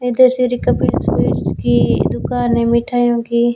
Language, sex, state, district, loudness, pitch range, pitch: Hindi, female, Rajasthan, Bikaner, -15 LUFS, 235-245 Hz, 240 Hz